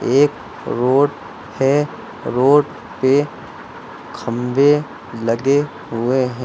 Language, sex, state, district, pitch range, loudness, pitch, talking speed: Hindi, male, Uttar Pradesh, Lucknow, 125-145 Hz, -18 LUFS, 135 Hz, 85 wpm